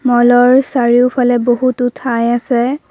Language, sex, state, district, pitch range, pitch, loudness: Assamese, female, Assam, Kamrup Metropolitan, 240-255 Hz, 245 Hz, -12 LUFS